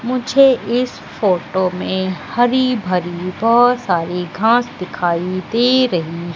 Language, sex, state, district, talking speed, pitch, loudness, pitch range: Hindi, female, Madhya Pradesh, Katni, 115 wpm, 190 Hz, -17 LUFS, 180-245 Hz